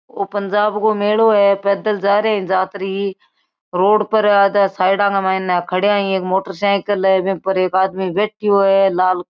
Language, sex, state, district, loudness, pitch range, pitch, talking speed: Marwari, female, Rajasthan, Nagaur, -16 LUFS, 190-205 Hz, 200 Hz, 170 wpm